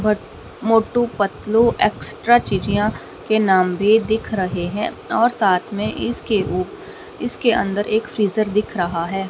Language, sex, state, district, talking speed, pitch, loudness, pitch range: Hindi, female, Haryana, Rohtak, 140 wpm, 210 Hz, -19 LUFS, 195-230 Hz